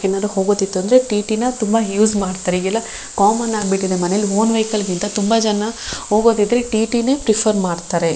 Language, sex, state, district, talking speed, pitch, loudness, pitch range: Kannada, female, Karnataka, Shimoga, 160 wpm, 210 Hz, -17 LUFS, 195-225 Hz